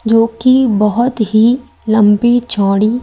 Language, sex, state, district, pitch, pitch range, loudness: Hindi, female, Madhya Pradesh, Umaria, 225 Hz, 210-240 Hz, -12 LUFS